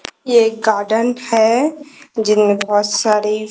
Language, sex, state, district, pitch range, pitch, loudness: Hindi, female, Bihar, Katihar, 210-240 Hz, 220 Hz, -15 LUFS